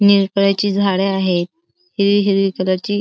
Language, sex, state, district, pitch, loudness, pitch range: Marathi, female, Maharashtra, Dhule, 195 Hz, -16 LUFS, 185-200 Hz